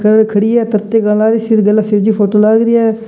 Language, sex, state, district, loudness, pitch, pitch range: Hindi, male, Rajasthan, Churu, -11 LUFS, 220 Hz, 210-225 Hz